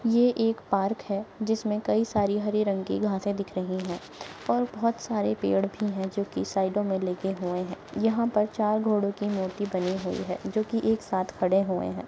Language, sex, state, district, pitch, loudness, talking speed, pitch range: Hindi, female, Maharashtra, Nagpur, 200 Hz, -28 LUFS, 215 wpm, 190-215 Hz